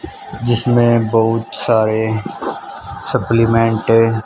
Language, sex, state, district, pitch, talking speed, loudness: Hindi, male, Haryana, Charkhi Dadri, 115 Hz, 70 wpm, -15 LUFS